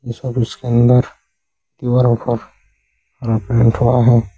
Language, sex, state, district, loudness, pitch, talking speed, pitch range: Hindi, male, Uttar Pradesh, Saharanpur, -15 LUFS, 120 Hz, 110 wpm, 115-125 Hz